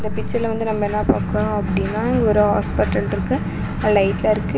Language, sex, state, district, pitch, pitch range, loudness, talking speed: Tamil, female, Tamil Nadu, Namakkal, 210 Hz, 205-220 Hz, -20 LUFS, 170 wpm